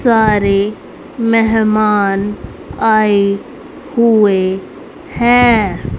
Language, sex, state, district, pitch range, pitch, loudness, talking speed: Hindi, female, Haryana, Rohtak, 200-230 Hz, 215 Hz, -13 LUFS, 50 wpm